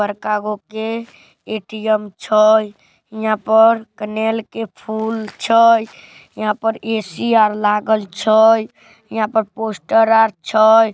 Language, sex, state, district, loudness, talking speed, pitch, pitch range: Magahi, male, Bihar, Samastipur, -16 LUFS, 105 wpm, 220 Hz, 215-225 Hz